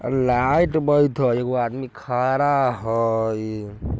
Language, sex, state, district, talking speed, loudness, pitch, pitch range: Hindi, male, Bihar, Vaishali, 120 wpm, -21 LUFS, 125 Hz, 115-135 Hz